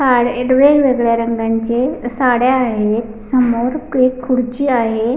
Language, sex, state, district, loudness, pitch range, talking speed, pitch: Marathi, female, Maharashtra, Pune, -15 LUFS, 230-260 Hz, 105 wpm, 245 Hz